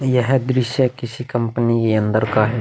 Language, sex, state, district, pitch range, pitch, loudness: Hindi, male, Bihar, Vaishali, 115-125 Hz, 120 Hz, -18 LUFS